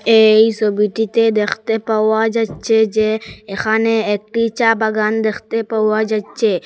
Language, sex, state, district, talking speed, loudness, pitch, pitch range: Bengali, female, Assam, Hailakandi, 115 wpm, -16 LUFS, 220 Hz, 215-225 Hz